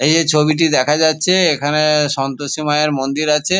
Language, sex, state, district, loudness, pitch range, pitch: Bengali, male, West Bengal, Kolkata, -15 LUFS, 145-155 Hz, 150 Hz